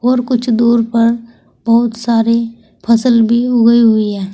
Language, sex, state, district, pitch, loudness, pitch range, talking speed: Hindi, female, Uttar Pradesh, Saharanpur, 230 Hz, -12 LUFS, 230-235 Hz, 150 wpm